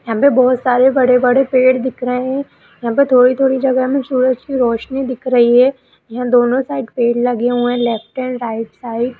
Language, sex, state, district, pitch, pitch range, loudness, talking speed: Hindi, female, Uttarakhand, Uttarkashi, 250 Hz, 240-260 Hz, -15 LUFS, 220 wpm